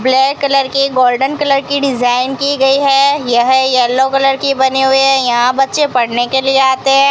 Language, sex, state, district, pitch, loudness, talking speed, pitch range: Hindi, female, Rajasthan, Bikaner, 270 Hz, -12 LUFS, 200 wpm, 260-275 Hz